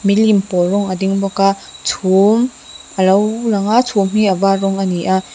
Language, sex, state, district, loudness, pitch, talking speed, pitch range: Mizo, female, Mizoram, Aizawl, -15 LUFS, 195 Hz, 225 wpm, 190-210 Hz